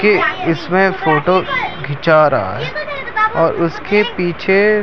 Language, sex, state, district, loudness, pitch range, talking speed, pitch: Hindi, male, Maharashtra, Mumbai Suburban, -15 LUFS, 155-210 Hz, 125 wpm, 180 Hz